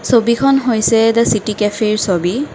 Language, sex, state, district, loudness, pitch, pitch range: Assamese, female, Assam, Kamrup Metropolitan, -14 LUFS, 225 Hz, 215-235 Hz